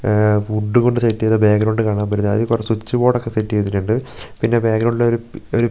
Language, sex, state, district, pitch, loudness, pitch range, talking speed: Malayalam, male, Kerala, Wayanad, 110 Hz, -17 LUFS, 105-115 Hz, 220 wpm